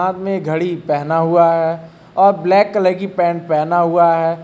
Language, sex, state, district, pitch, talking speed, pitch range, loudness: Hindi, male, Uttar Pradesh, Lucknow, 170 Hz, 175 wpm, 165-185 Hz, -15 LUFS